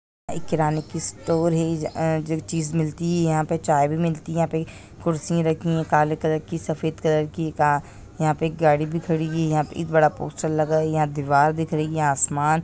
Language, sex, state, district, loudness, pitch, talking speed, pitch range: Hindi, female, Rajasthan, Nagaur, -23 LUFS, 160 Hz, 220 wpm, 155-165 Hz